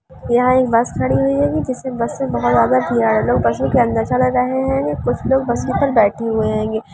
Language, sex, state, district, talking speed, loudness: Hindi, female, Bihar, Sitamarhi, 205 wpm, -17 LUFS